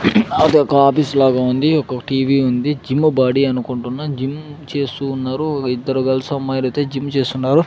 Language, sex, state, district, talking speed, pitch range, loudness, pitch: Telugu, male, Andhra Pradesh, Sri Satya Sai, 165 wpm, 130-145 Hz, -17 LUFS, 135 Hz